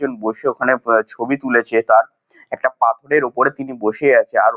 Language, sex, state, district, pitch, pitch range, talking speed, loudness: Bengali, male, West Bengal, Kolkata, 130 Hz, 115-135 Hz, 170 wpm, -17 LUFS